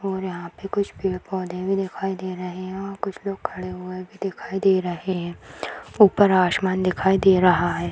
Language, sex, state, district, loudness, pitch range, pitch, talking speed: Hindi, female, Bihar, Jamui, -23 LUFS, 180-195 Hz, 185 Hz, 195 wpm